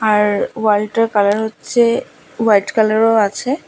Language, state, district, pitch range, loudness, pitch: Bengali, West Bengal, Alipurduar, 210-230 Hz, -15 LUFS, 215 Hz